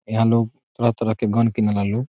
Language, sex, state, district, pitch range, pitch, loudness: Bhojpuri, male, Bihar, Saran, 110-115 Hz, 115 Hz, -21 LUFS